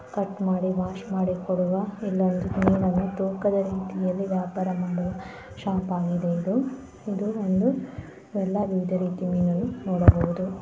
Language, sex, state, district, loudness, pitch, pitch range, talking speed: Kannada, female, Karnataka, Dharwad, -26 LUFS, 190 Hz, 185-195 Hz, 105 wpm